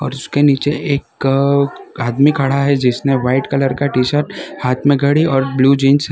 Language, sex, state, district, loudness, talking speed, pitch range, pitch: Hindi, male, Gujarat, Valsad, -15 LUFS, 195 wpm, 135-145 Hz, 140 Hz